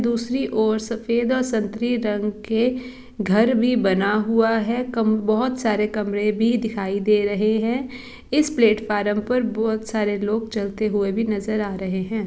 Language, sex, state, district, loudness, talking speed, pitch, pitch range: Hindi, female, Bihar, East Champaran, -21 LUFS, 165 wpm, 220 Hz, 210-235 Hz